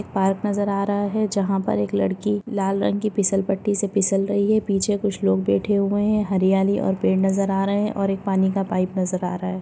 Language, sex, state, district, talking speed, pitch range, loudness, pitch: Hindi, female, Maharashtra, Solapur, 235 wpm, 190-205 Hz, -21 LUFS, 195 Hz